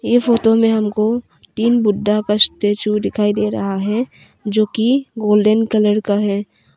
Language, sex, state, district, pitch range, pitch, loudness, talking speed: Hindi, female, Arunachal Pradesh, Longding, 210-225 Hz, 215 Hz, -16 LUFS, 160 wpm